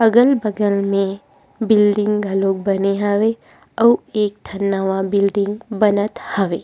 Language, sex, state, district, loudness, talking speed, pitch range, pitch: Chhattisgarhi, female, Chhattisgarh, Rajnandgaon, -18 LUFS, 115 wpm, 195-215 Hz, 205 Hz